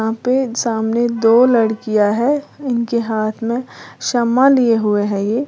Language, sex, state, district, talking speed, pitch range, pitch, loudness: Hindi, female, Uttar Pradesh, Lalitpur, 155 wpm, 220-250 Hz, 235 Hz, -16 LUFS